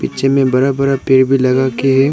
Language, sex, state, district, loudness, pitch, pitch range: Hindi, male, Arunachal Pradesh, Lower Dibang Valley, -13 LUFS, 135 Hz, 130-135 Hz